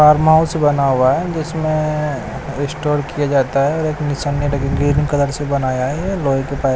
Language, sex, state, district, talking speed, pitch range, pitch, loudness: Hindi, male, Odisha, Nuapada, 195 wpm, 140-155 Hz, 145 Hz, -17 LUFS